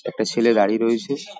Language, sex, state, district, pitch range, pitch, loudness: Bengali, male, West Bengal, Paschim Medinipur, 115-140 Hz, 115 Hz, -20 LUFS